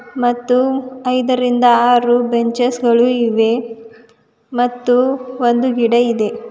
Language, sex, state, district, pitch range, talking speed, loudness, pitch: Kannada, female, Karnataka, Bidar, 235-250 Hz, 90 wpm, -15 LUFS, 245 Hz